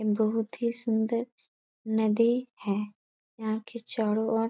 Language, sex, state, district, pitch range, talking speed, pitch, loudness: Hindi, female, Bihar, Sitamarhi, 215-230 Hz, 120 wpm, 220 Hz, -29 LUFS